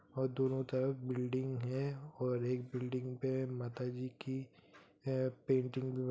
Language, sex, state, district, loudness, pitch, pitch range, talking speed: Hindi, male, Bihar, Gopalganj, -39 LUFS, 130 Hz, 125-130 Hz, 145 wpm